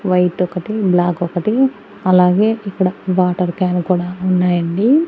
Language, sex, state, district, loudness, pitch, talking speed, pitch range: Telugu, female, Andhra Pradesh, Annamaya, -16 LUFS, 185 Hz, 120 wpm, 180-195 Hz